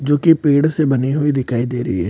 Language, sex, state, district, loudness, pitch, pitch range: Hindi, male, Bihar, Purnia, -16 LUFS, 140 Hz, 125-150 Hz